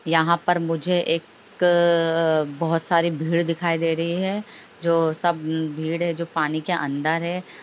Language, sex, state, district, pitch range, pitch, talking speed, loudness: Hindi, female, Bihar, Sitamarhi, 160-175 Hz, 165 Hz, 155 wpm, -22 LUFS